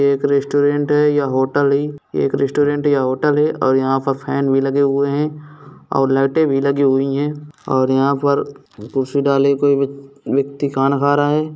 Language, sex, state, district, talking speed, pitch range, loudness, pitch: Hindi, male, Bihar, Gaya, 185 wpm, 135-145 Hz, -17 LUFS, 140 Hz